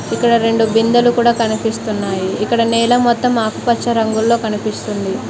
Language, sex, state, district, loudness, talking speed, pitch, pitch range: Telugu, female, Telangana, Mahabubabad, -15 LUFS, 125 wpm, 225 Hz, 220-235 Hz